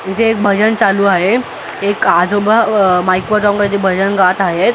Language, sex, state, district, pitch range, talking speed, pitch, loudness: Marathi, male, Maharashtra, Mumbai Suburban, 190-215 Hz, 190 wpm, 200 Hz, -12 LUFS